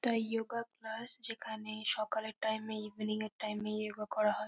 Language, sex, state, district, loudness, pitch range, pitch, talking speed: Bengali, female, West Bengal, North 24 Parganas, -37 LUFS, 215-225 Hz, 220 Hz, 185 wpm